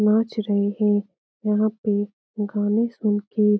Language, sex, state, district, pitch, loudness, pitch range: Hindi, female, Bihar, Lakhisarai, 210 Hz, -23 LUFS, 205-215 Hz